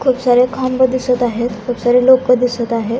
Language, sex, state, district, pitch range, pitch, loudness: Marathi, female, Maharashtra, Aurangabad, 240-255 Hz, 250 Hz, -14 LUFS